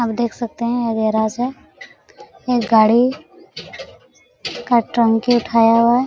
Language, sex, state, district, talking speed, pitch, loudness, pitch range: Hindi, female, Jharkhand, Sahebganj, 150 wpm, 235 Hz, -17 LUFS, 225-245 Hz